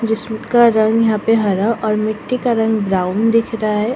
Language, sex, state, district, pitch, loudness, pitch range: Hindi, female, Delhi, New Delhi, 220 Hz, -16 LUFS, 215-230 Hz